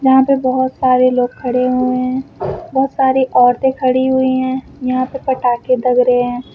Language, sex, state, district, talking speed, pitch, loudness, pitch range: Hindi, female, Uttar Pradesh, Lucknow, 185 wpm, 255 Hz, -15 LUFS, 250-265 Hz